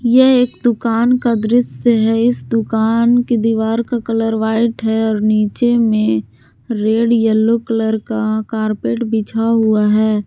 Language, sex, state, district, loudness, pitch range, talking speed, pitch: Hindi, female, Jharkhand, Garhwa, -15 LUFS, 220-235 Hz, 145 wpm, 225 Hz